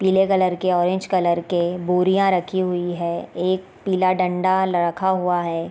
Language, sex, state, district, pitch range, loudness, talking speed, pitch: Hindi, female, Chhattisgarh, Raigarh, 175-190 Hz, -20 LUFS, 170 wpm, 180 Hz